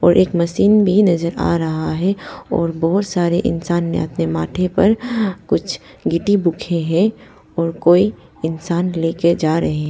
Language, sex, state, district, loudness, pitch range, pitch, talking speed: Hindi, female, Arunachal Pradesh, Papum Pare, -17 LUFS, 165-195 Hz, 170 Hz, 165 wpm